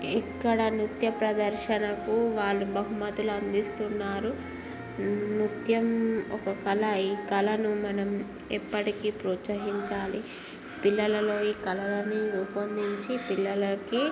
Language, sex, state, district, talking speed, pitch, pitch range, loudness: Telugu, female, Telangana, Karimnagar, 85 wpm, 210 Hz, 200-215 Hz, -29 LUFS